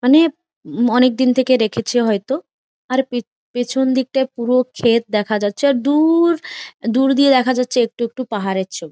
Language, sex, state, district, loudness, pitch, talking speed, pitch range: Bengali, female, West Bengal, Jhargram, -17 LUFS, 255 Hz, 170 wpm, 235-270 Hz